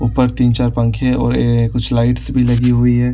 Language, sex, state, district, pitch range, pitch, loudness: Hindi, male, Chhattisgarh, Raigarh, 120-125 Hz, 120 Hz, -15 LUFS